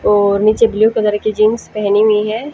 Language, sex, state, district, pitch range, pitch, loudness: Hindi, female, Haryana, Jhajjar, 210-220 Hz, 215 Hz, -13 LUFS